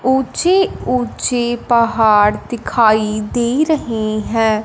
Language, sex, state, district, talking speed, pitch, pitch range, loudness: Hindi, male, Punjab, Fazilka, 90 wpm, 235 Hz, 215-250 Hz, -15 LUFS